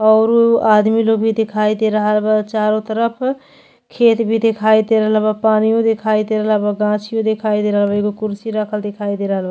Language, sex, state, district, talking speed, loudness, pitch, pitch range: Bhojpuri, female, Uttar Pradesh, Deoria, 210 wpm, -16 LUFS, 215 Hz, 210-225 Hz